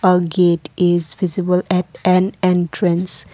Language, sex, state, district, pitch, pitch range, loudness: English, female, Assam, Kamrup Metropolitan, 180 Hz, 175-185 Hz, -17 LUFS